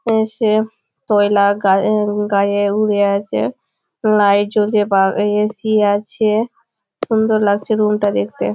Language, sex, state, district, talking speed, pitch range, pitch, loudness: Bengali, female, West Bengal, Malda, 120 wpm, 205-215 Hz, 210 Hz, -16 LUFS